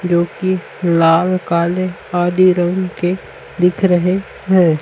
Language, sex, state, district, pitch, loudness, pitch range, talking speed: Hindi, male, Chhattisgarh, Raipur, 180 Hz, -15 LUFS, 170-185 Hz, 110 wpm